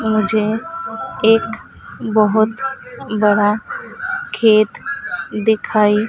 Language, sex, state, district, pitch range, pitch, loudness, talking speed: Hindi, female, Madhya Pradesh, Dhar, 215-255 Hz, 220 Hz, -17 LUFS, 60 wpm